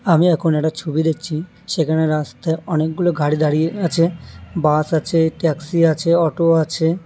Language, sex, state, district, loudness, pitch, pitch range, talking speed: Bengali, male, West Bengal, North 24 Parganas, -18 LUFS, 160 Hz, 155-170 Hz, 145 wpm